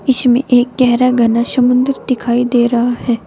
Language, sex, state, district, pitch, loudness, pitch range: Hindi, female, Uttar Pradesh, Saharanpur, 245 Hz, -13 LUFS, 240-255 Hz